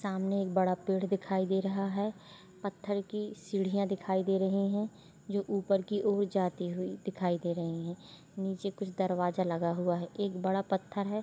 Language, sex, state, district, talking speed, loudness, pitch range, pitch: Hindi, female, Jharkhand, Sahebganj, 185 wpm, -33 LUFS, 185-200 Hz, 195 Hz